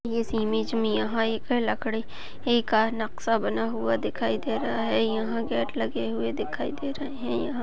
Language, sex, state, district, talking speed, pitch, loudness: Hindi, female, Chhattisgarh, Balrampur, 180 wpm, 220 Hz, -27 LUFS